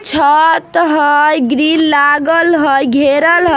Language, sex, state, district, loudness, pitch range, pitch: Bajjika, female, Bihar, Vaishali, -10 LUFS, 285-325 Hz, 300 Hz